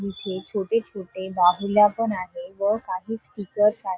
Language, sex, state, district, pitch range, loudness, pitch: Marathi, female, Maharashtra, Solapur, 190-215 Hz, -24 LUFS, 200 Hz